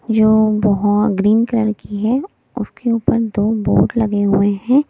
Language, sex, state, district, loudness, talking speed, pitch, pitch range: Hindi, female, Delhi, New Delhi, -16 LUFS, 160 wpm, 215 Hz, 205-230 Hz